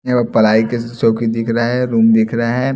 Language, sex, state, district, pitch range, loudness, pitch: Hindi, male, Haryana, Jhajjar, 115-120 Hz, -15 LUFS, 115 Hz